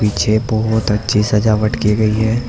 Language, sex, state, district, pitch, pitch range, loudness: Hindi, male, Uttar Pradesh, Saharanpur, 110 Hz, 105-110 Hz, -15 LUFS